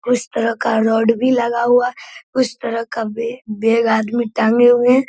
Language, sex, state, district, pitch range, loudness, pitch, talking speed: Hindi, male, Bihar, Darbhanga, 225-245 Hz, -17 LUFS, 235 Hz, 190 wpm